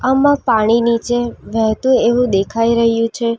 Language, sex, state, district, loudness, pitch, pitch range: Gujarati, female, Gujarat, Valsad, -15 LUFS, 235 Hz, 230-245 Hz